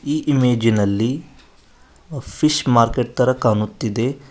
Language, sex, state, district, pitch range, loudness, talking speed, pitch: Kannada, male, Karnataka, Koppal, 115-140 Hz, -18 LUFS, 95 wpm, 125 Hz